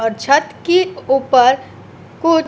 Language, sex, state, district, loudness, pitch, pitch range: Hindi, female, Uttar Pradesh, Etah, -15 LUFS, 275 Hz, 255-325 Hz